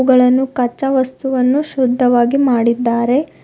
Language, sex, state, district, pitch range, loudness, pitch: Kannada, female, Karnataka, Bidar, 245-265 Hz, -14 LUFS, 255 Hz